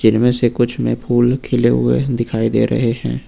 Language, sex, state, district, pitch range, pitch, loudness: Hindi, male, Uttar Pradesh, Lucknow, 105-120 Hz, 115 Hz, -16 LUFS